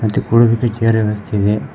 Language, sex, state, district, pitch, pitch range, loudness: Kannada, male, Karnataka, Koppal, 110 Hz, 105-115 Hz, -15 LUFS